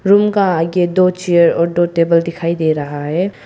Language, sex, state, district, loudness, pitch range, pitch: Hindi, female, Arunachal Pradesh, Papum Pare, -14 LUFS, 165-185 Hz, 170 Hz